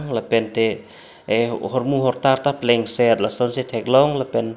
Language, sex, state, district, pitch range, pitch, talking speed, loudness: Karbi, male, Assam, Karbi Anglong, 115-130 Hz, 120 Hz, 120 wpm, -19 LUFS